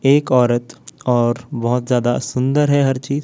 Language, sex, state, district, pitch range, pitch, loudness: Hindi, male, Chhattisgarh, Raipur, 120-140 Hz, 125 Hz, -17 LUFS